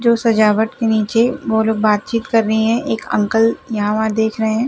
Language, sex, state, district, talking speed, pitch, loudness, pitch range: Hindi, female, Bihar, Gopalganj, 205 wpm, 220 Hz, -16 LUFS, 220-230 Hz